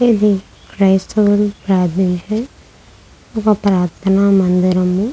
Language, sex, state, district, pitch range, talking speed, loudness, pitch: Telugu, female, Andhra Pradesh, Krishna, 185-210 Hz, 70 wpm, -15 LUFS, 195 Hz